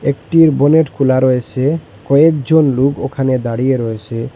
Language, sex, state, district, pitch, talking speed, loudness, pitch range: Bengali, male, Assam, Hailakandi, 135 Hz, 125 wpm, -14 LUFS, 130-150 Hz